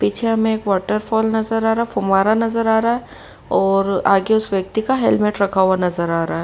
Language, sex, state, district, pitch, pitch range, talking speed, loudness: Hindi, female, Uttar Pradesh, Etah, 210 Hz, 195-225 Hz, 230 wpm, -18 LUFS